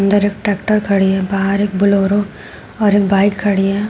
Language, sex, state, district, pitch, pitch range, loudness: Hindi, female, Uttar Pradesh, Shamli, 200 Hz, 195-205 Hz, -15 LUFS